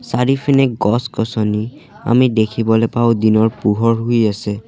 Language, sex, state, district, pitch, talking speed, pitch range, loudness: Assamese, male, Assam, Sonitpur, 115 Hz, 115 wpm, 110-125 Hz, -15 LUFS